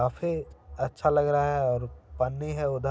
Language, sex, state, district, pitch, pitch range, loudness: Hindi, male, Bihar, Saran, 145 Hz, 125-150 Hz, -28 LUFS